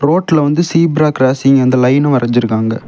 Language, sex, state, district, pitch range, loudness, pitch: Tamil, male, Tamil Nadu, Kanyakumari, 125-155 Hz, -12 LUFS, 135 Hz